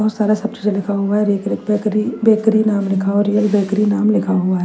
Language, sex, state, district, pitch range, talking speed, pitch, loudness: Hindi, female, Chandigarh, Chandigarh, 200-215 Hz, 260 wpm, 210 Hz, -16 LUFS